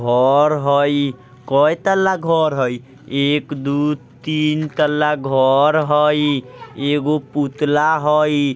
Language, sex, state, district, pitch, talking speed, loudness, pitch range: Bajjika, male, Bihar, Vaishali, 145 Hz, 105 wpm, -17 LUFS, 140-150 Hz